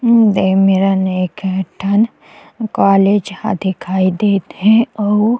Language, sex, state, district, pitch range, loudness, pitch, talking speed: Chhattisgarhi, female, Chhattisgarh, Jashpur, 190-215 Hz, -14 LUFS, 195 Hz, 120 wpm